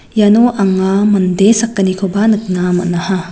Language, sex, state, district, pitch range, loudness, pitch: Garo, female, Meghalaya, West Garo Hills, 185-210 Hz, -12 LUFS, 195 Hz